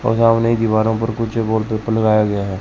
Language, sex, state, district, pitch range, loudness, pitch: Hindi, male, Chandigarh, Chandigarh, 110-115 Hz, -17 LUFS, 110 Hz